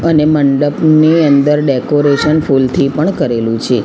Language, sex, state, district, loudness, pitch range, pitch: Gujarati, female, Gujarat, Gandhinagar, -11 LUFS, 135-155 Hz, 145 Hz